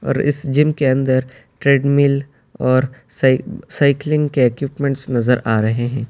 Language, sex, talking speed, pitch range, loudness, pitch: Urdu, male, 145 wpm, 130-140 Hz, -17 LUFS, 135 Hz